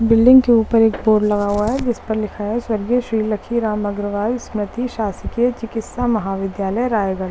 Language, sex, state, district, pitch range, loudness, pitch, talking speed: Hindi, female, Chhattisgarh, Raigarh, 205-235 Hz, -18 LUFS, 220 Hz, 165 wpm